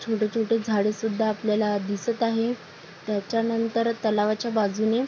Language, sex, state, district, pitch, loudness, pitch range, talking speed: Marathi, female, Maharashtra, Sindhudurg, 220 Hz, -25 LUFS, 210-230 Hz, 140 wpm